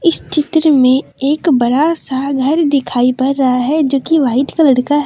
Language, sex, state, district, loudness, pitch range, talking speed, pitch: Hindi, female, Jharkhand, Deoghar, -13 LUFS, 260-310 Hz, 190 wpm, 280 Hz